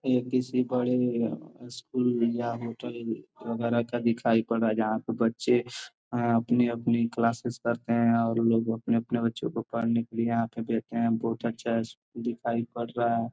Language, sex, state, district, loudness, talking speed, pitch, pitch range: Hindi, male, Bihar, Gopalganj, -28 LUFS, 170 wpm, 115 Hz, 115-120 Hz